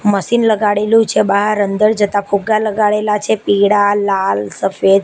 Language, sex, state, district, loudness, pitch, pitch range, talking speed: Gujarati, female, Gujarat, Gandhinagar, -14 LUFS, 205 Hz, 200-215 Hz, 140 wpm